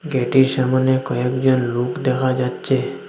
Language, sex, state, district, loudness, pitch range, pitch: Bengali, male, Assam, Hailakandi, -19 LUFS, 125-130 Hz, 130 Hz